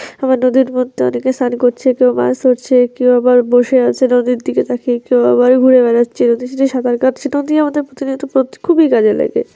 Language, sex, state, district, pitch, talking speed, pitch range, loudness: Bengali, female, West Bengal, Jalpaiguri, 250 Hz, 180 wpm, 245-265 Hz, -13 LUFS